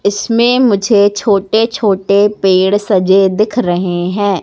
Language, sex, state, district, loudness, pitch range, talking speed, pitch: Hindi, female, Madhya Pradesh, Katni, -12 LUFS, 190-215 Hz, 120 wpm, 200 Hz